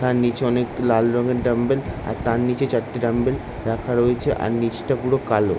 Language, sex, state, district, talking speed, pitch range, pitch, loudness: Bengali, male, West Bengal, Jalpaiguri, 195 wpm, 115-125 Hz, 120 Hz, -21 LUFS